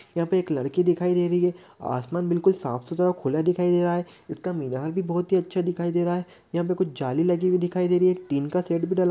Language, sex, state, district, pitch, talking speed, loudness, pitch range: Hindi, male, Chhattisgarh, Korba, 175 Hz, 275 wpm, -25 LUFS, 170-180 Hz